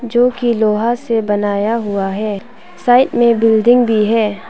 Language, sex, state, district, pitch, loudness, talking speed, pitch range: Hindi, female, Arunachal Pradesh, Papum Pare, 225 Hz, -14 LUFS, 160 wpm, 210-240 Hz